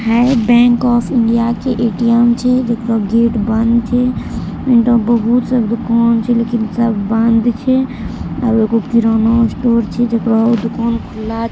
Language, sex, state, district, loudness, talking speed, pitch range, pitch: Angika, female, Bihar, Bhagalpur, -14 LUFS, 140 wpm, 225-240 Hz, 230 Hz